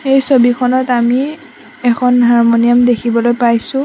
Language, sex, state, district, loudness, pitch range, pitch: Assamese, female, Assam, Sonitpur, -12 LUFS, 240-260 Hz, 245 Hz